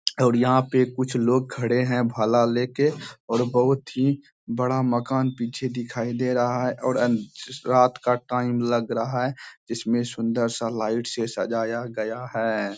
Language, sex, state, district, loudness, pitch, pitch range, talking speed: Hindi, male, Bihar, Bhagalpur, -24 LUFS, 120 Hz, 115-125 Hz, 165 wpm